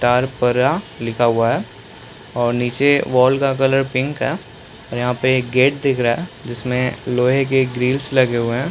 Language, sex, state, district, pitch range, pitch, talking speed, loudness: Hindi, male, Chhattisgarh, Bastar, 120-135 Hz, 125 Hz, 180 wpm, -18 LUFS